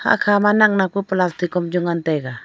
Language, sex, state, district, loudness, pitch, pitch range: Wancho, female, Arunachal Pradesh, Longding, -18 LUFS, 180 Hz, 170-200 Hz